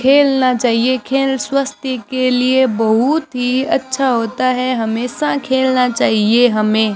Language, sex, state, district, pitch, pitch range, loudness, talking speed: Hindi, male, Rajasthan, Bikaner, 255 Hz, 240-265 Hz, -15 LUFS, 130 wpm